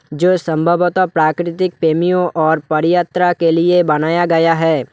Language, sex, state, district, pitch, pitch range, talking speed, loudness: Hindi, male, West Bengal, Alipurduar, 170 Hz, 160-175 Hz, 135 wpm, -14 LUFS